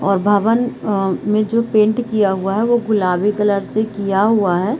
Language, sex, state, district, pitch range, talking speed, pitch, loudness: Hindi, female, Chhattisgarh, Bilaspur, 195-225 Hz, 200 wpm, 210 Hz, -16 LUFS